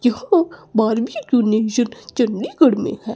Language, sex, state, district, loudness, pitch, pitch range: Hindi, male, Chandigarh, Chandigarh, -18 LUFS, 235 Hz, 220-255 Hz